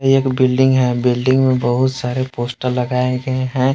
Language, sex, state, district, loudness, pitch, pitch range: Hindi, male, Jharkhand, Palamu, -17 LUFS, 130 Hz, 125-130 Hz